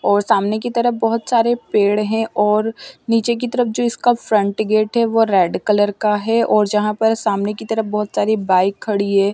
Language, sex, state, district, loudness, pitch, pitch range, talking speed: Hindi, female, Delhi, New Delhi, -17 LUFS, 215 Hz, 205-230 Hz, 210 wpm